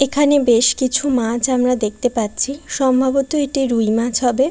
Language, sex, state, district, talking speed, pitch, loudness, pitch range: Bengali, female, West Bengal, Kolkata, 160 wpm, 255 Hz, -17 LUFS, 240-275 Hz